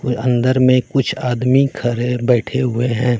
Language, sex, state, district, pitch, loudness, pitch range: Hindi, male, Bihar, Katihar, 125 Hz, -16 LUFS, 120-130 Hz